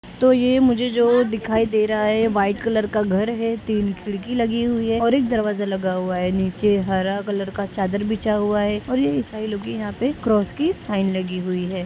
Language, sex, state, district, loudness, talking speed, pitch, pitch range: Hindi, female, Uttar Pradesh, Jyotiba Phule Nagar, -21 LUFS, 240 wpm, 210 Hz, 195-230 Hz